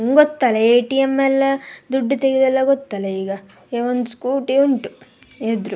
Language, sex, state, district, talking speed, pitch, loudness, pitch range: Kannada, female, Karnataka, Dakshina Kannada, 115 wpm, 260 Hz, -18 LUFS, 225-270 Hz